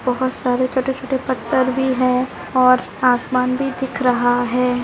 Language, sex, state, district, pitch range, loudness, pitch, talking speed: Hindi, female, Karnataka, Dakshina Kannada, 250-260 Hz, -18 LUFS, 255 Hz, 160 wpm